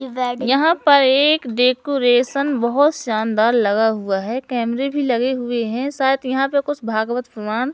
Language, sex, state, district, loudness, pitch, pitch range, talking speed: Hindi, male, Madhya Pradesh, Katni, -18 LUFS, 250 Hz, 235-275 Hz, 155 wpm